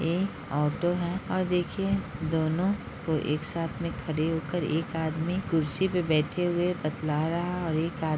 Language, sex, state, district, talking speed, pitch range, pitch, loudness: Hindi, male, Bihar, Darbhanga, 185 wpm, 155-180 Hz, 165 Hz, -29 LUFS